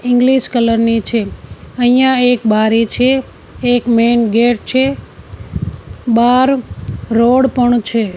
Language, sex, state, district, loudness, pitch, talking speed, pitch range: Gujarati, female, Gujarat, Gandhinagar, -13 LUFS, 240 Hz, 115 wpm, 230-250 Hz